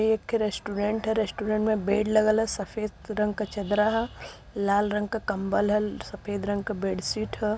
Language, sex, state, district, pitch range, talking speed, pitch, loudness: Hindi, female, Uttar Pradesh, Varanasi, 205-215 Hz, 190 wpm, 210 Hz, -27 LUFS